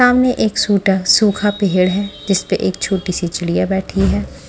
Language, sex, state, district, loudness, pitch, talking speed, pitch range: Hindi, female, Maharashtra, Washim, -16 LUFS, 195 Hz, 185 wpm, 175-205 Hz